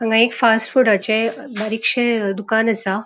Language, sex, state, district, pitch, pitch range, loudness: Konkani, female, Goa, North and South Goa, 225 Hz, 215-230 Hz, -17 LUFS